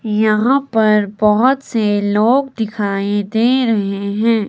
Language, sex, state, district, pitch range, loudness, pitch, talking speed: Hindi, female, Himachal Pradesh, Shimla, 205-230 Hz, -15 LUFS, 215 Hz, 120 wpm